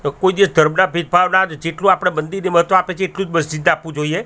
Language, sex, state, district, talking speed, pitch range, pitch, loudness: Gujarati, male, Gujarat, Gandhinagar, 210 wpm, 160-190 Hz, 180 Hz, -16 LUFS